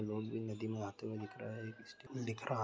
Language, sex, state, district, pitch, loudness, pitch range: Maithili, male, Bihar, Supaul, 110 Hz, -44 LUFS, 105-115 Hz